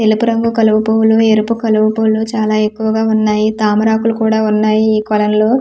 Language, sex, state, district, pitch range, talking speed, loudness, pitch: Telugu, female, Andhra Pradesh, Manyam, 215-220 Hz, 180 wpm, -13 LUFS, 220 Hz